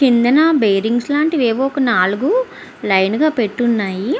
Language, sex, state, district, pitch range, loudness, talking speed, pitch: Telugu, female, Andhra Pradesh, Visakhapatnam, 210-285 Hz, -15 LUFS, 140 wpm, 240 Hz